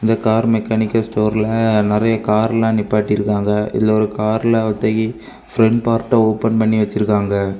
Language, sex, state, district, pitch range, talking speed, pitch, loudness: Tamil, male, Tamil Nadu, Kanyakumari, 105-115 Hz, 135 wpm, 110 Hz, -16 LUFS